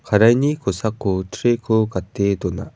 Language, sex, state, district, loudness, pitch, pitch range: Garo, male, Meghalaya, West Garo Hills, -19 LUFS, 105 Hz, 95-120 Hz